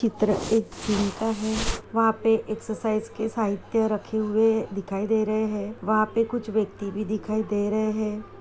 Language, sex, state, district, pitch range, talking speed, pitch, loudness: Hindi, female, Uttar Pradesh, Jyotiba Phule Nagar, 210-225 Hz, 180 wpm, 215 Hz, -26 LUFS